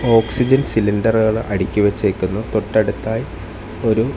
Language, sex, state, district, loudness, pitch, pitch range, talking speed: Malayalam, male, Kerala, Thiruvananthapuram, -18 LUFS, 110 Hz, 100-115 Hz, 85 wpm